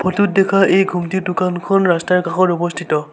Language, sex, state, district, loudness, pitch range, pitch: Assamese, male, Assam, Sonitpur, -16 LUFS, 175-190 Hz, 185 Hz